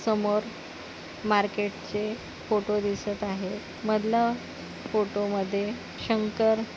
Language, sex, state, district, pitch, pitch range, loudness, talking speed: Marathi, female, Maharashtra, Nagpur, 210 Hz, 205-220 Hz, -28 LUFS, 80 wpm